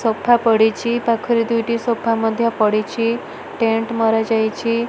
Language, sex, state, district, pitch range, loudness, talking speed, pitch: Odia, female, Odisha, Malkangiri, 225-235 Hz, -18 LUFS, 125 wpm, 230 Hz